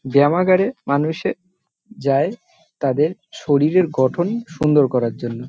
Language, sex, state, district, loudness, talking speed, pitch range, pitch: Bengali, male, West Bengal, North 24 Parganas, -19 LUFS, 100 wpm, 135-180 Hz, 150 Hz